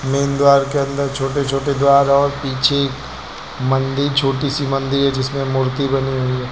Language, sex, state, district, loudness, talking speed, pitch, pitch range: Hindi, male, Uttar Pradesh, Lucknow, -17 LUFS, 175 wpm, 140 Hz, 135-140 Hz